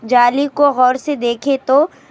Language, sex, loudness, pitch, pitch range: Urdu, female, -15 LUFS, 270 Hz, 250-285 Hz